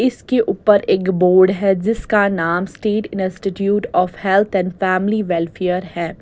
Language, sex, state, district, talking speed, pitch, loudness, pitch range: Hindi, female, Bihar, West Champaran, 145 wpm, 190 Hz, -17 LUFS, 180-205 Hz